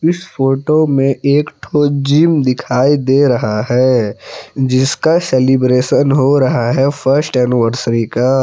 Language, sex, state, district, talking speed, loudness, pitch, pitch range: Hindi, male, Jharkhand, Palamu, 120 wpm, -13 LUFS, 135 Hz, 125-145 Hz